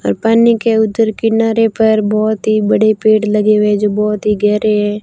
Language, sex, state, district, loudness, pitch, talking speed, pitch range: Hindi, female, Rajasthan, Barmer, -12 LUFS, 215 Hz, 205 wpm, 210-225 Hz